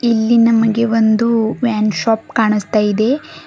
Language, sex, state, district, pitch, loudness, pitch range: Kannada, female, Karnataka, Bidar, 225 Hz, -14 LUFS, 215-230 Hz